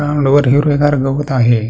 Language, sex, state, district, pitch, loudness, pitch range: Marathi, male, Maharashtra, Pune, 140 Hz, -13 LUFS, 135-145 Hz